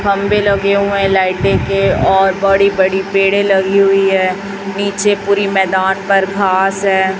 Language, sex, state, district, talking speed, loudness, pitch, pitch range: Hindi, female, Chhattisgarh, Raipur, 150 wpm, -13 LUFS, 195 Hz, 190-200 Hz